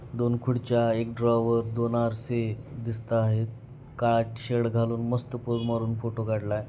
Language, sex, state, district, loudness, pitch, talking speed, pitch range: Marathi, male, Maharashtra, Pune, -28 LUFS, 115 Hz, 145 wpm, 115-120 Hz